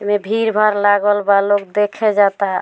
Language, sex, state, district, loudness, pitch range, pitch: Bhojpuri, female, Bihar, Muzaffarpur, -15 LUFS, 200-210 Hz, 205 Hz